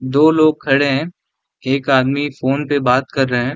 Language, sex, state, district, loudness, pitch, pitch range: Hindi, male, Bihar, Sitamarhi, -16 LUFS, 135 Hz, 130-145 Hz